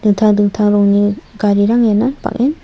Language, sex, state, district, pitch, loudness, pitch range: Garo, female, Meghalaya, South Garo Hills, 210 Hz, -13 LUFS, 205-230 Hz